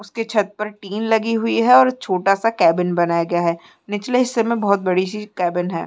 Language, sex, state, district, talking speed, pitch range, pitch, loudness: Hindi, female, Uttar Pradesh, Muzaffarnagar, 225 wpm, 180-225 Hz, 205 Hz, -18 LUFS